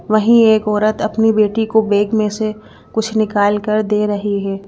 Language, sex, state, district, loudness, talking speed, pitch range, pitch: Hindi, female, Madhya Pradesh, Bhopal, -15 LUFS, 190 wpm, 205-220 Hz, 215 Hz